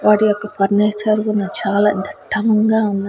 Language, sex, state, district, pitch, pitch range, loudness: Telugu, female, Andhra Pradesh, Annamaya, 210 Hz, 205-215 Hz, -17 LUFS